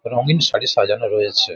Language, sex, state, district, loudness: Bengali, male, West Bengal, Jhargram, -17 LUFS